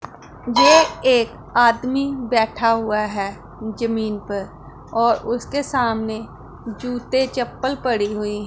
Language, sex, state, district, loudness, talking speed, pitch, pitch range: Hindi, female, Punjab, Pathankot, -19 LUFS, 105 wpm, 230 Hz, 210-250 Hz